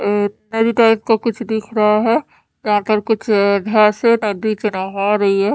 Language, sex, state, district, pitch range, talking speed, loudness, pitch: Hindi, female, Haryana, Charkhi Dadri, 205-225 Hz, 185 wpm, -16 LUFS, 215 Hz